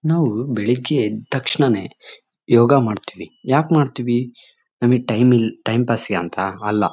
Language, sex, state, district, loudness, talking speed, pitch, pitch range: Kannada, male, Karnataka, Bellary, -18 LUFS, 120 wpm, 120 Hz, 110-135 Hz